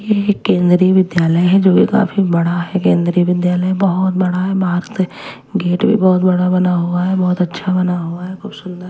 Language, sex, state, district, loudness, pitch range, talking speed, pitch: Hindi, female, Chhattisgarh, Raipur, -15 LUFS, 180-190 Hz, 200 wpm, 180 Hz